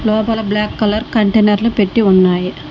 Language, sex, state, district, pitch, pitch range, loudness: Telugu, female, Telangana, Mahabubabad, 210 Hz, 200-220 Hz, -14 LUFS